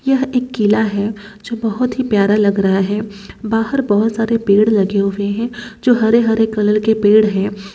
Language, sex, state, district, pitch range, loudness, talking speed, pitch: Hindi, female, Bihar, Saran, 205-230 Hz, -15 LUFS, 185 wpm, 215 Hz